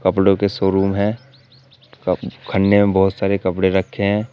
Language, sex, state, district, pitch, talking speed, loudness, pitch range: Hindi, male, Uttar Pradesh, Shamli, 100 Hz, 165 wpm, -18 LUFS, 95-105 Hz